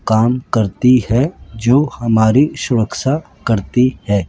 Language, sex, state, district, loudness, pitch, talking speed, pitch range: Hindi, male, Rajasthan, Jaipur, -15 LUFS, 120 Hz, 110 wpm, 110-130 Hz